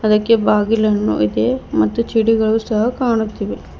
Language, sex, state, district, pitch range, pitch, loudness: Kannada, female, Karnataka, Bidar, 180-225 Hz, 215 Hz, -16 LUFS